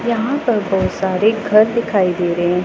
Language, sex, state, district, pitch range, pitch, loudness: Hindi, female, Punjab, Pathankot, 185-230 Hz, 210 Hz, -16 LUFS